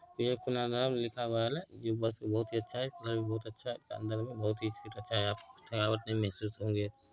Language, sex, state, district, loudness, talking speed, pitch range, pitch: Hindi, male, Bihar, Araria, -36 LUFS, 200 wpm, 110-120 Hz, 115 Hz